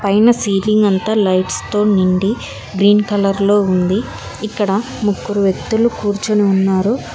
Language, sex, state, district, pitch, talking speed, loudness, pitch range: Telugu, female, Telangana, Hyderabad, 205 Hz, 125 wpm, -15 LUFS, 195-215 Hz